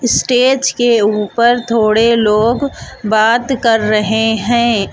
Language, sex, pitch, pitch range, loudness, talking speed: Hindi, female, 230 Hz, 215-245 Hz, -13 LUFS, 110 wpm